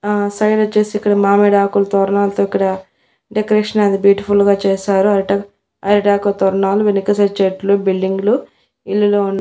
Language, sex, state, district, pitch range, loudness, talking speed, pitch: Telugu, female, Andhra Pradesh, Annamaya, 195-205 Hz, -15 LUFS, 130 wpm, 200 Hz